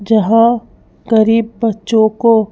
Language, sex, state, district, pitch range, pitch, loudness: Hindi, female, Madhya Pradesh, Bhopal, 220-230 Hz, 225 Hz, -13 LUFS